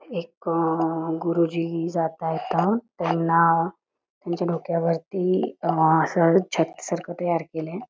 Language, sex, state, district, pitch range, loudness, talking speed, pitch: Marathi, female, Karnataka, Belgaum, 165-175 Hz, -24 LUFS, 90 wpm, 170 Hz